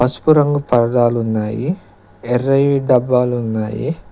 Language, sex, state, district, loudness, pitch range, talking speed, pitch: Telugu, male, Telangana, Mahabubabad, -16 LUFS, 115-140 Hz, 75 wpm, 125 Hz